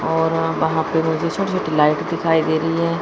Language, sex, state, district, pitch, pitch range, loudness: Hindi, female, Chandigarh, Chandigarh, 160 Hz, 160-165 Hz, -19 LUFS